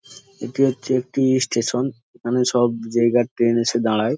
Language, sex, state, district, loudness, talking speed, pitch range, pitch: Bengali, male, West Bengal, Jhargram, -20 LUFS, 160 wpm, 115-130 Hz, 120 Hz